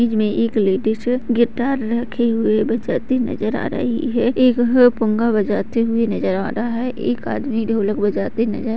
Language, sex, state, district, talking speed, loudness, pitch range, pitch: Hindi, female, Bihar, Jamui, 185 wpm, -19 LUFS, 220-245 Hz, 230 Hz